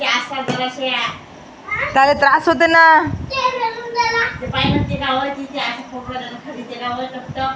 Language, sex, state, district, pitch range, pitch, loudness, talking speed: Marathi, female, Maharashtra, Washim, 250-325 Hz, 270 Hz, -16 LUFS, 40 wpm